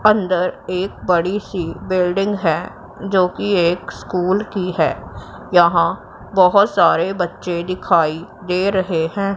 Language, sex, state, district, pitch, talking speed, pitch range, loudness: Hindi, female, Punjab, Pathankot, 185 Hz, 130 wpm, 175-195 Hz, -18 LUFS